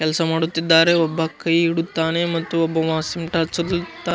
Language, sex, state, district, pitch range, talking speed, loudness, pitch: Kannada, male, Karnataka, Gulbarga, 160-170 Hz, 145 wpm, -20 LUFS, 165 Hz